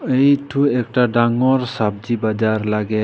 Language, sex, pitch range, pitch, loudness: Sadri, male, 110-130 Hz, 120 Hz, -18 LUFS